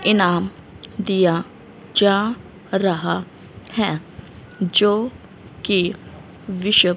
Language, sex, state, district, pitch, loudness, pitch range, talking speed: Hindi, female, Haryana, Rohtak, 195 Hz, -20 LUFS, 185-210 Hz, 70 wpm